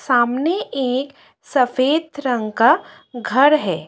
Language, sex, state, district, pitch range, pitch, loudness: Hindi, female, Delhi, New Delhi, 245-285 Hz, 260 Hz, -18 LUFS